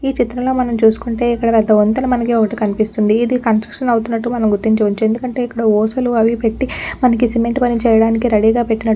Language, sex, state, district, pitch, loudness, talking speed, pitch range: Telugu, female, Telangana, Nalgonda, 230 Hz, -15 LUFS, 175 wpm, 220-245 Hz